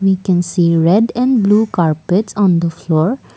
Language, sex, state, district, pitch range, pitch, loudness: English, female, Assam, Kamrup Metropolitan, 170-215 Hz, 190 Hz, -14 LUFS